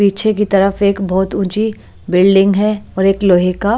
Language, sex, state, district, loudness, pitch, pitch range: Hindi, female, Chandigarh, Chandigarh, -14 LUFS, 195 Hz, 190-210 Hz